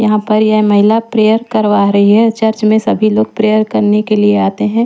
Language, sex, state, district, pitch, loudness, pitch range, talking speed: Hindi, female, Chhattisgarh, Raipur, 215 Hz, -11 LUFS, 205-220 Hz, 225 wpm